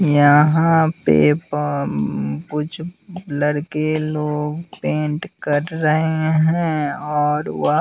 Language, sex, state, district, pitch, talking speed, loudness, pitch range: Hindi, male, Bihar, West Champaran, 150 Hz, 90 wpm, -19 LUFS, 150-160 Hz